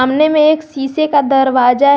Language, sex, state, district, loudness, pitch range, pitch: Hindi, female, Jharkhand, Garhwa, -12 LUFS, 270-305 Hz, 280 Hz